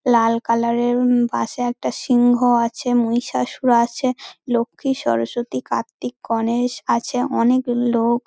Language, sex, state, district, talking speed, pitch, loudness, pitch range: Bengali, female, West Bengal, Dakshin Dinajpur, 125 wpm, 240 Hz, -19 LUFS, 230-245 Hz